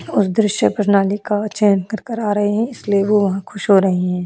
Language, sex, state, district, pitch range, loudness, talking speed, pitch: Hindi, female, Goa, North and South Goa, 195-210 Hz, -17 LUFS, 225 wpm, 205 Hz